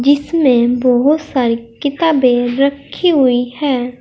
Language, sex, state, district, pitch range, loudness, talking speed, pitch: Hindi, female, Uttar Pradesh, Saharanpur, 245-285 Hz, -14 LUFS, 105 wpm, 260 Hz